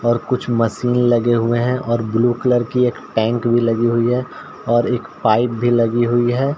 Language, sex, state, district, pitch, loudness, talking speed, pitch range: Hindi, male, Uttar Pradesh, Ghazipur, 120 Hz, -17 LUFS, 210 wpm, 115-125 Hz